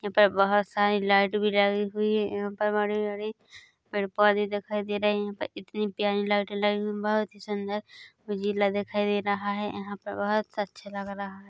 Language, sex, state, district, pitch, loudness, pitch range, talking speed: Hindi, female, Chhattisgarh, Korba, 205 Hz, -27 LUFS, 205-210 Hz, 220 wpm